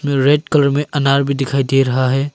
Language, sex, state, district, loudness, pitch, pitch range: Hindi, male, Arunachal Pradesh, Longding, -15 LUFS, 140 Hz, 135-145 Hz